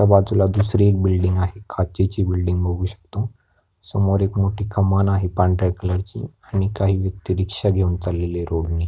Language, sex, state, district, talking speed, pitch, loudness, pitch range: Marathi, male, Maharashtra, Pune, 180 wpm, 95 Hz, -21 LUFS, 90-100 Hz